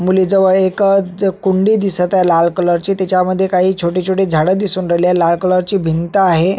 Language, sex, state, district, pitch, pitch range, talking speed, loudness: Marathi, male, Maharashtra, Sindhudurg, 185 Hz, 180-190 Hz, 220 wpm, -13 LUFS